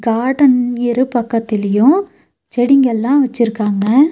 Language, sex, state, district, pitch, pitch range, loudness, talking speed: Tamil, female, Tamil Nadu, Nilgiris, 245 Hz, 225-265 Hz, -14 LUFS, 90 wpm